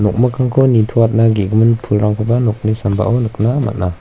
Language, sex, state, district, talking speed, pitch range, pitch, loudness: Garo, male, Meghalaya, West Garo Hills, 135 wpm, 105-120 Hz, 115 Hz, -14 LUFS